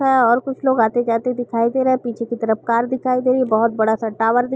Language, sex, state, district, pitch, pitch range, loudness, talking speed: Hindi, female, Uttar Pradesh, Gorakhpur, 240 Hz, 230-255 Hz, -18 LUFS, 300 wpm